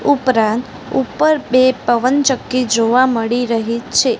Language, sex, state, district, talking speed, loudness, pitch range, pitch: Gujarati, female, Gujarat, Gandhinagar, 115 wpm, -15 LUFS, 235-260 Hz, 250 Hz